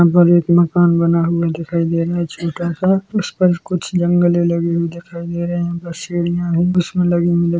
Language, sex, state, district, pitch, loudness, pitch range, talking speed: Hindi, male, Chhattisgarh, Korba, 175 Hz, -16 LUFS, 170-175 Hz, 230 wpm